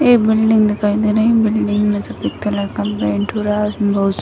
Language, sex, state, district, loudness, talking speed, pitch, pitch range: Hindi, female, Bihar, Sitamarhi, -16 LUFS, 240 wpm, 210 Hz, 195-220 Hz